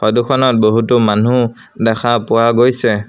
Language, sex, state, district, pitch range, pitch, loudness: Assamese, male, Assam, Sonitpur, 110-120 Hz, 115 Hz, -13 LUFS